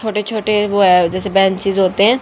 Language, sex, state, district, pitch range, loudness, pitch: Hindi, female, Haryana, Charkhi Dadri, 190-210 Hz, -14 LUFS, 200 Hz